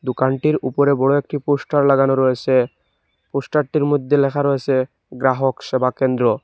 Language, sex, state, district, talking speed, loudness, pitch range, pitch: Bengali, male, Assam, Hailakandi, 140 wpm, -18 LUFS, 130-145 Hz, 135 Hz